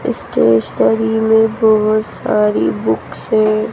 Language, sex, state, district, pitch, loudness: Hindi, male, Madhya Pradesh, Bhopal, 215 Hz, -14 LUFS